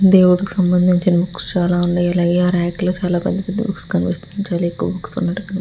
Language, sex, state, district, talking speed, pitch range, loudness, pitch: Telugu, female, Andhra Pradesh, Guntur, 215 wpm, 175-190 Hz, -18 LUFS, 180 Hz